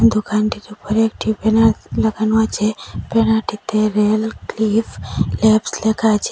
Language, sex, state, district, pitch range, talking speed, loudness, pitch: Bengali, female, Assam, Hailakandi, 215-220 Hz, 105 wpm, -17 LUFS, 220 Hz